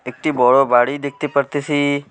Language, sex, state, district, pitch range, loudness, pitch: Bengali, male, West Bengal, Alipurduar, 135-145 Hz, -17 LUFS, 140 Hz